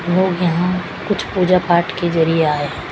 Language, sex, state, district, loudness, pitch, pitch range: Hindi, female, Chhattisgarh, Raipur, -17 LUFS, 175 Hz, 165-185 Hz